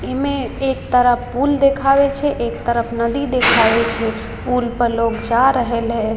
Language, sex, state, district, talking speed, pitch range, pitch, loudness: Maithili, female, Bihar, Samastipur, 175 wpm, 230-270 Hz, 245 Hz, -17 LUFS